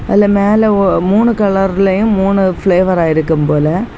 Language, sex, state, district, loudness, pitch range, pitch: Tamil, female, Tamil Nadu, Kanyakumari, -12 LUFS, 180-205 Hz, 195 Hz